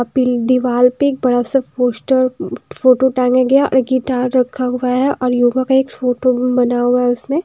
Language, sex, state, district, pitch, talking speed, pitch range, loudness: Hindi, female, Bihar, Patna, 255 Hz, 195 wpm, 250-260 Hz, -15 LUFS